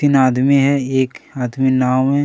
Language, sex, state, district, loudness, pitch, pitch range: Hindi, male, Chhattisgarh, Kabirdham, -16 LUFS, 130 Hz, 130-140 Hz